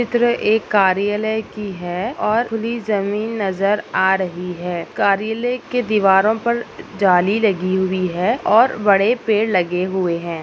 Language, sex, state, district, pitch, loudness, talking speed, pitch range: Hindi, female, Maharashtra, Nagpur, 200 Hz, -18 LUFS, 155 wpm, 185-220 Hz